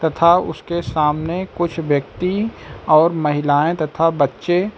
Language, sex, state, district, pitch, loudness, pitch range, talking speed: Hindi, male, Uttar Pradesh, Lucknow, 165 Hz, -18 LUFS, 150-175 Hz, 115 wpm